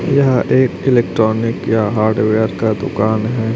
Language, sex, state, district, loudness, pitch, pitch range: Hindi, male, Chhattisgarh, Raipur, -15 LUFS, 110 Hz, 110-125 Hz